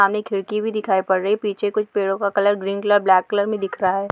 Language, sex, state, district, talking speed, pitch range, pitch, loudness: Hindi, female, Bihar, Vaishali, 305 wpm, 195-210 Hz, 200 Hz, -20 LUFS